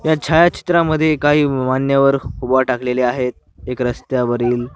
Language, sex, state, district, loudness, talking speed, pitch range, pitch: Marathi, male, Maharashtra, Washim, -16 LUFS, 125 wpm, 125-150 Hz, 130 Hz